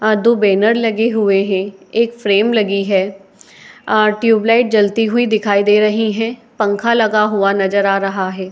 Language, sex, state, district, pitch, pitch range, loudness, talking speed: Hindi, female, Uttar Pradesh, Etah, 210 Hz, 200-225 Hz, -14 LUFS, 210 wpm